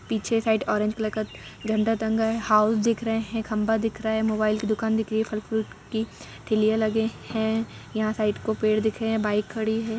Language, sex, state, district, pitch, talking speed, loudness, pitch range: Hindi, female, Chhattisgarh, Kabirdham, 220 Hz, 230 wpm, -25 LUFS, 215-225 Hz